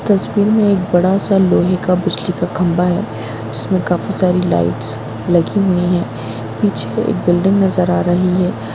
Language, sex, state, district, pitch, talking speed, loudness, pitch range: Hindi, female, Bihar, Gopalganj, 180 Hz, 180 wpm, -15 LUFS, 160-190 Hz